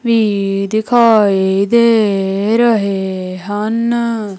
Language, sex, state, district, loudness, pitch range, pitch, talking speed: Punjabi, female, Punjab, Kapurthala, -14 LUFS, 195-230 Hz, 210 Hz, 70 wpm